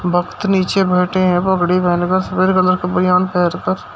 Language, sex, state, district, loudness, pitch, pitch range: Hindi, male, Uttar Pradesh, Shamli, -15 LUFS, 180 Hz, 180-185 Hz